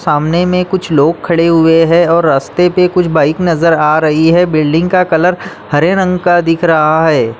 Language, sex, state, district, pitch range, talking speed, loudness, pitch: Hindi, male, Bihar, Darbhanga, 155-180 Hz, 205 wpm, -10 LUFS, 165 Hz